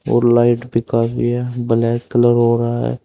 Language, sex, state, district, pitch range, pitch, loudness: Hindi, male, Uttar Pradesh, Saharanpur, 115-120 Hz, 120 Hz, -16 LUFS